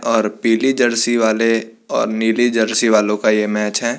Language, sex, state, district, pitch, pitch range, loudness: Hindi, male, Uttarakhand, Tehri Garhwal, 115 Hz, 110-115 Hz, -16 LUFS